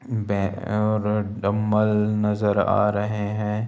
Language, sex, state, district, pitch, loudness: Hindi, male, Chhattisgarh, Bilaspur, 105 Hz, -23 LUFS